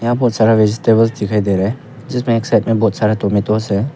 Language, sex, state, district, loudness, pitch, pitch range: Hindi, male, Arunachal Pradesh, Papum Pare, -15 LUFS, 110 Hz, 105-115 Hz